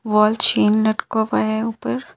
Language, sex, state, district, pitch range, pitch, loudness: Hindi, female, Jharkhand, Ranchi, 210-220 Hz, 215 Hz, -18 LUFS